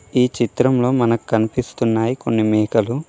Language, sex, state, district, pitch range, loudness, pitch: Telugu, male, Telangana, Mahabubabad, 110-125 Hz, -18 LUFS, 115 Hz